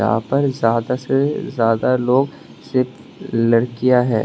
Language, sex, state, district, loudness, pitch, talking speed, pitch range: Hindi, male, Tripura, West Tripura, -18 LUFS, 125 Hz, 125 wpm, 115-130 Hz